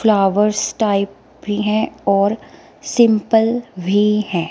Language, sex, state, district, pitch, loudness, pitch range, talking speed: Hindi, female, Himachal Pradesh, Shimla, 210 Hz, -17 LUFS, 200-220 Hz, 105 wpm